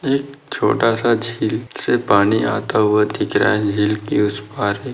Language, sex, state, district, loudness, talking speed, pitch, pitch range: Hindi, male, Maharashtra, Dhule, -18 LUFS, 195 wpm, 110 Hz, 105-130 Hz